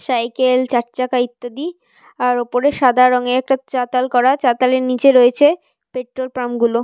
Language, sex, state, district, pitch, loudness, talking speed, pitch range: Bengali, female, West Bengal, Paschim Medinipur, 255 Hz, -16 LUFS, 150 wpm, 245-260 Hz